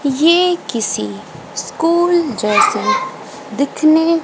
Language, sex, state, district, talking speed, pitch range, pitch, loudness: Hindi, female, Haryana, Rohtak, 70 wpm, 210-330 Hz, 285 Hz, -15 LUFS